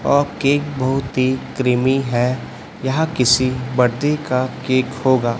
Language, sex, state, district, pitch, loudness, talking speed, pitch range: Hindi, male, Chhattisgarh, Raipur, 130 Hz, -18 LUFS, 135 wpm, 125-135 Hz